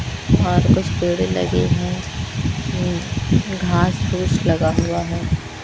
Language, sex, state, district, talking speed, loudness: Hindi, female, Haryana, Rohtak, 115 wpm, -19 LUFS